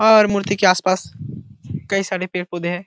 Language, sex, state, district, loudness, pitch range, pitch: Hindi, male, Bihar, Jahanabad, -18 LUFS, 160-195 Hz, 185 Hz